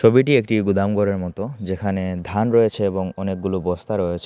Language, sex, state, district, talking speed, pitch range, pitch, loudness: Bengali, male, Tripura, Unakoti, 170 wpm, 95-105 Hz, 100 Hz, -21 LUFS